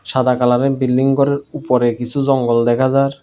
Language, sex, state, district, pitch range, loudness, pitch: Bengali, male, Tripura, South Tripura, 125-140 Hz, -16 LUFS, 130 Hz